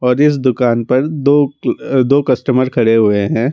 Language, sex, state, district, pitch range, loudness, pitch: Hindi, male, Rajasthan, Jaipur, 120-140 Hz, -13 LUFS, 130 Hz